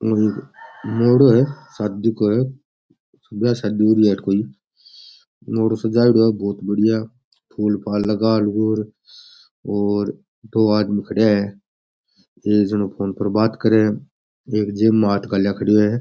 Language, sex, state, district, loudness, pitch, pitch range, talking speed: Rajasthani, male, Rajasthan, Nagaur, -19 LUFS, 105 Hz, 105-110 Hz, 155 wpm